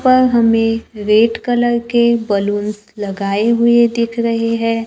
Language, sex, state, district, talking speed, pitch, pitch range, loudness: Hindi, male, Maharashtra, Gondia, 135 wpm, 230 Hz, 210-235 Hz, -15 LUFS